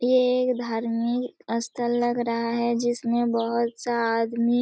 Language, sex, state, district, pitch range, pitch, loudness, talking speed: Hindi, female, Jharkhand, Jamtara, 230-240 Hz, 235 Hz, -25 LUFS, 140 wpm